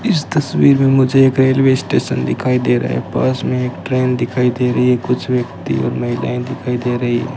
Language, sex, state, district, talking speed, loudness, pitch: Hindi, male, Rajasthan, Bikaner, 220 wpm, -16 LUFS, 125 Hz